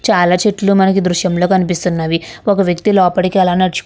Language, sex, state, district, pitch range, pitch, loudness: Telugu, female, Andhra Pradesh, Krishna, 175-195 Hz, 185 Hz, -13 LUFS